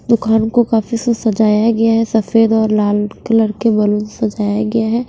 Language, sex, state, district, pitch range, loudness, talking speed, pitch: Hindi, female, Punjab, Pathankot, 215-230 Hz, -14 LUFS, 190 wpm, 220 Hz